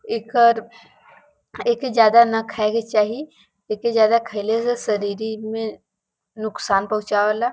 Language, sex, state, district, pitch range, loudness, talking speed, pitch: Bhojpuri, female, Uttar Pradesh, Varanasi, 215-235 Hz, -20 LUFS, 125 wpm, 225 Hz